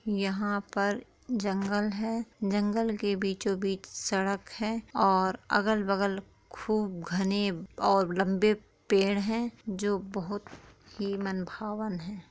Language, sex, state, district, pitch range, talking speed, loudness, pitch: Hindi, female, Jharkhand, Jamtara, 195-215 Hz, 120 wpm, -30 LUFS, 200 Hz